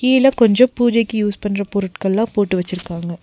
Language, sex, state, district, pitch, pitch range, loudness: Tamil, female, Tamil Nadu, Nilgiris, 205 Hz, 190-230 Hz, -17 LUFS